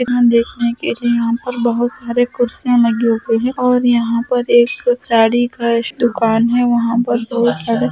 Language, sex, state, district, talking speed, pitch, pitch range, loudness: Hindi, female, Bihar, Madhepura, 175 wpm, 240 Hz, 235-245 Hz, -15 LUFS